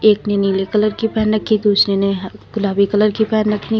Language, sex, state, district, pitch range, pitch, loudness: Hindi, female, Uttar Pradesh, Lalitpur, 200-215 Hz, 210 Hz, -16 LUFS